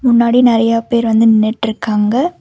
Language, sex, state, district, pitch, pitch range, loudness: Tamil, female, Karnataka, Bangalore, 230 Hz, 220-235 Hz, -12 LUFS